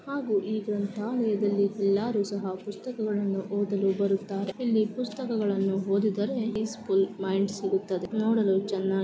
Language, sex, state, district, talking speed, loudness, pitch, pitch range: Kannada, female, Karnataka, Mysore, 115 wpm, -28 LUFS, 205 Hz, 195-215 Hz